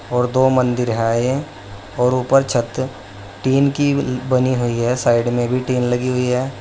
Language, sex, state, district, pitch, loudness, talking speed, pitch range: Hindi, male, Uttar Pradesh, Saharanpur, 125 Hz, -18 LUFS, 170 wpm, 120-130 Hz